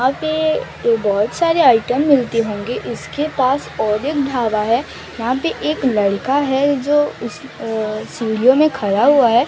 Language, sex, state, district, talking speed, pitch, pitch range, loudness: Hindi, female, Odisha, Sambalpur, 160 wpm, 255 Hz, 225-285 Hz, -17 LUFS